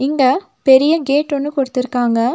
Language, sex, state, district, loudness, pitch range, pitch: Tamil, female, Tamil Nadu, Nilgiris, -15 LUFS, 255-290 Hz, 270 Hz